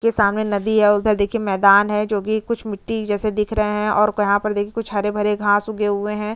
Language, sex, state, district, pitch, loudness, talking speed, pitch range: Hindi, female, Chhattisgarh, Bastar, 210 Hz, -19 LUFS, 245 wpm, 205-215 Hz